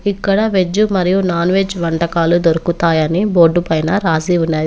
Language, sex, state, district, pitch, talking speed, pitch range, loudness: Telugu, female, Telangana, Komaram Bheem, 175 Hz, 130 wpm, 165-195 Hz, -14 LUFS